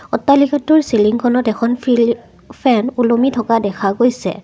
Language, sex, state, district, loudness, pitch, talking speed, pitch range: Assamese, female, Assam, Kamrup Metropolitan, -15 LUFS, 240 Hz, 120 wpm, 225-255 Hz